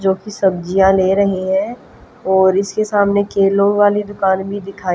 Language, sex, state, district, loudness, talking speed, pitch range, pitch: Hindi, female, Haryana, Jhajjar, -15 LUFS, 170 wpm, 190-205 Hz, 195 Hz